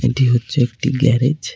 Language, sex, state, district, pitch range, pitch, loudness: Bengali, male, West Bengal, Cooch Behar, 125-135 Hz, 125 Hz, -17 LUFS